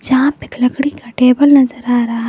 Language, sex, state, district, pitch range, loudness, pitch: Hindi, female, Jharkhand, Garhwa, 245-275 Hz, -13 LUFS, 250 Hz